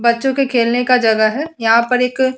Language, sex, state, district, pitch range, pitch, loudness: Hindi, female, Uttar Pradesh, Budaun, 230-260 Hz, 250 Hz, -15 LUFS